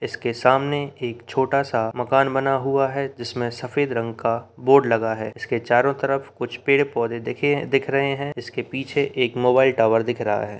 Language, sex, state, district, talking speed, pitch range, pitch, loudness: Hindi, male, Bihar, Begusarai, 190 wpm, 115-140 Hz, 130 Hz, -22 LUFS